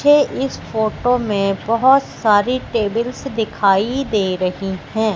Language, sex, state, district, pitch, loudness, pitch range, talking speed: Hindi, female, Madhya Pradesh, Katni, 220 Hz, -18 LUFS, 200-255 Hz, 130 wpm